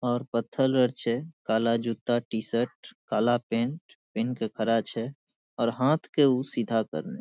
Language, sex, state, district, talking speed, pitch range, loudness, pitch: Maithili, male, Bihar, Saharsa, 165 wpm, 115-130 Hz, -28 LUFS, 120 Hz